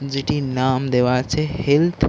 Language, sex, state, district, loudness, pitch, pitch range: Bengali, male, West Bengal, Dakshin Dinajpur, -20 LUFS, 140 Hz, 130-145 Hz